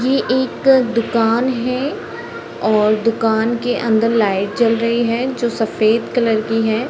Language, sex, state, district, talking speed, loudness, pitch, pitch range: Hindi, female, Bihar, Sitamarhi, 150 wpm, -16 LUFS, 230 Hz, 225-245 Hz